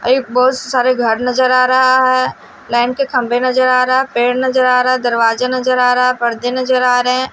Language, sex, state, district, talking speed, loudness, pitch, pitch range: Hindi, female, Odisha, Malkangiri, 245 wpm, -13 LUFS, 255 Hz, 245-255 Hz